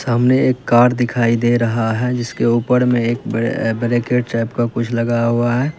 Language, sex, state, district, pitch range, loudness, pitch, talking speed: Hindi, male, Uttar Pradesh, Lalitpur, 115-125 Hz, -17 LUFS, 120 Hz, 195 wpm